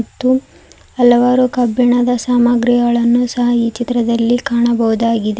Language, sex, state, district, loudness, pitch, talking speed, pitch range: Kannada, female, Karnataka, Koppal, -14 LUFS, 240 Hz, 90 wpm, 235-245 Hz